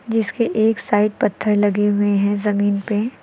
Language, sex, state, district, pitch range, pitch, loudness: Hindi, female, Uttar Pradesh, Lucknow, 205-220 Hz, 210 Hz, -18 LUFS